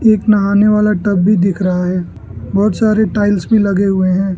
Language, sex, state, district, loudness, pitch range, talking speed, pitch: Hindi, male, Arunachal Pradesh, Lower Dibang Valley, -13 LUFS, 190-210 Hz, 205 wpm, 200 Hz